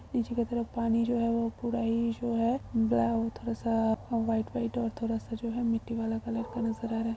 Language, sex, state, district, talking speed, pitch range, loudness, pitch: Hindi, female, Bihar, Madhepura, 225 wpm, 225-235 Hz, -31 LUFS, 230 Hz